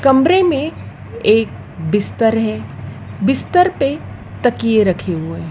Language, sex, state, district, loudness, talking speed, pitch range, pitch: Hindi, female, Madhya Pradesh, Dhar, -16 LUFS, 120 wpm, 185-280 Hz, 225 Hz